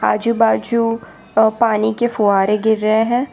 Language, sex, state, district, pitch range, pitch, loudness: Hindi, female, Gujarat, Valsad, 215-230 Hz, 220 Hz, -16 LUFS